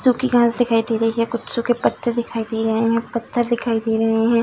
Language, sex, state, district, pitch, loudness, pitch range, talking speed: Hindi, female, Bihar, Darbhanga, 230 Hz, -20 LUFS, 225-235 Hz, 245 wpm